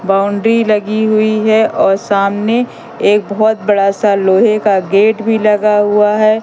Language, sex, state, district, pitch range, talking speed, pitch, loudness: Hindi, female, Madhya Pradesh, Katni, 200-220 Hz, 160 wpm, 210 Hz, -12 LUFS